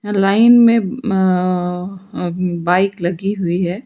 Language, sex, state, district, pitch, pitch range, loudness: Hindi, female, Karnataka, Bangalore, 190 Hz, 180-200 Hz, -16 LUFS